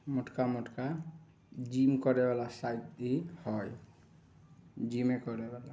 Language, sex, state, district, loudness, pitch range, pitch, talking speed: Maithili, male, Bihar, Samastipur, -35 LUFS, 120-130 Hz, 125 Hz, 105 wpm